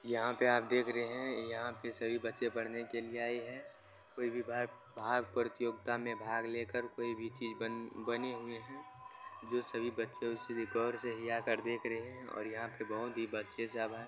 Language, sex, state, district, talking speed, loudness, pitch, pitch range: Maithili, male, Bihar, Supaul, 200 wpm, -38 LUFS, 120 Hz, 115-120 Hz